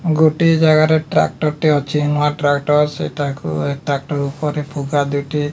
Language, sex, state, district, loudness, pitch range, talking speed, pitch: Odia, male, Odisha, Nuapada, -17 LUFS, 145-155 Hz, 150 wpm, 150 Hz